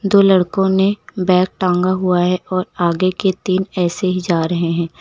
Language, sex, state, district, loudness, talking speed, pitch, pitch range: Hindi, female, Uttar Pradesh, Lucknow, -16 LUFS, 190 wpm, 185 Hz, 180-190 Hz